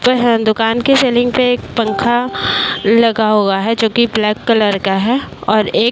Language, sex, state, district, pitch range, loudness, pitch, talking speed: Hindi, female, Uttar Pradesh, Varanasi, 215-240 Hz, -14 LUFS, 230 Hz, 170 wpm